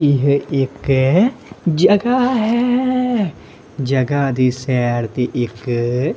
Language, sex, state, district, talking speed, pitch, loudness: Punjabi, male, Punjab, Kapurthala, 90 wpm, 140 Hz, -17 LUFS